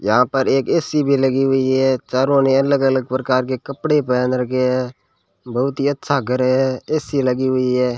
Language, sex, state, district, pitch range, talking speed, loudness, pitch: Hindi, male, Rajasthan, Bikaner, 130-140 Hz, 205 wpm, -18 LUFS, 130 Hz